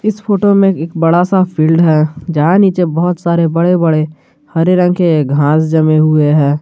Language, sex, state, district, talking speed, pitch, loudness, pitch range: Hindi, male, Jharkhand, Garhwa, 190 wpm, 165 Hz, -11 LUFS, 155-180 Hz